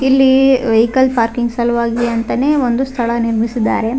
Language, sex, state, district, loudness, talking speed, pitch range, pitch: Kannada, female, Karnataka, Raichur, -14 LUFS, 120 wpm, 230-260 Hz, 240 Hz